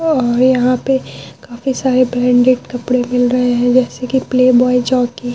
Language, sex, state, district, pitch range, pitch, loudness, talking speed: Hindi, female, Bihar, Vaishali, 245-255 Hz, 250 Hz, -14 LUFS, 180 wpm